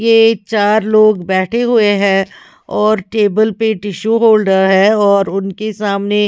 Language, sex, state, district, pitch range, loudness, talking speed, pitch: Hindi, female, Chhattisgarh, Raipur, 200-220 Hz, -13 LUFS, 145 wpm, 210 Hz